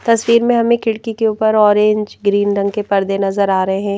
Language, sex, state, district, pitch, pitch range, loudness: Hindi, female, Madhya Pradesh, Bhopal, 210 Hz, 200-225 Hz, -15 LUFS